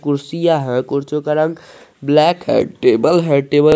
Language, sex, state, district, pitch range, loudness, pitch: Hindi, male, Jharkhand, Garhwa, 140-165 Hz, -15 LUFS, 150 Hz